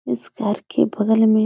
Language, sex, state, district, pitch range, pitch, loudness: Hindi, female, Uttar Pradesh, Etah, 205-220 Hz, 215 Hz, -20 LUFS